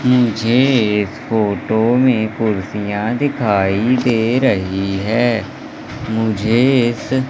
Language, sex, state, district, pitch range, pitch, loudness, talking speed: Hindi, male, Madhya Pradesh, Katni, 105-125 Hz, 110 Hz, -16 LUFS, 100 wpm